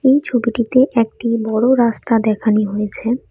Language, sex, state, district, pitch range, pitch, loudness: Bengali, female, Assam, Kamrup Metropolitan, 220-245 Hz, 230 Hz, -16 LUFS